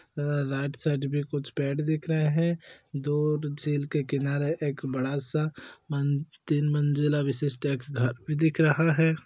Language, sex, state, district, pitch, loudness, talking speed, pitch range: Hindi, male, Chhattisgarh, Korba, 145 Hz, -28 LUFS, 160 wpm, 140-155 Hz